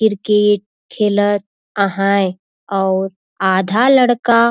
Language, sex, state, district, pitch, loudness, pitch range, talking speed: Surgujia, female, Chhattisgarh, Sarguja, 205 Hz, -15 LUFS, 195-220 Hz, 95 wpm